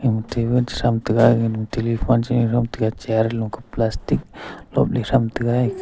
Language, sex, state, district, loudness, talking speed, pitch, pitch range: Wancho, male, Arunachal Pradesh, Longding, -20 LUFS, 155 wpm, 115 Hz, 110-120 Hz